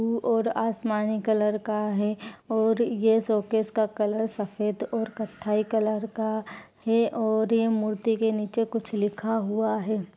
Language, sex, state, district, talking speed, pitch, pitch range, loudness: Hindi, female, Uttar Pradesh, Etah, 155 wpm, 220 Hz, 210-225 Hz, -26 LUFS